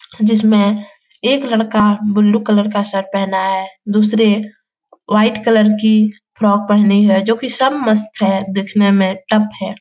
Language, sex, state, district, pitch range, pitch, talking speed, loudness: Hindi, female, Bihar, Jahanabad, 200-220 Hz, 210 Hz, 165 wpm, -14 LUFS